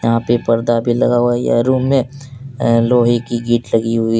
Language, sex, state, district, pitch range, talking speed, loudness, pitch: Hindi, male, Jharkhand, Deoghar, 115-125 Hz, 215 wpm, -15 LUFS, 120 Hz